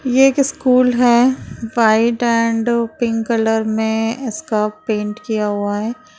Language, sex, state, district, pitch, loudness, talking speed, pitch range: Hindi, female, Bihar, Sitamarhi, 230 Hz, -17 LUFS, 135 wpm, 220-245 Hz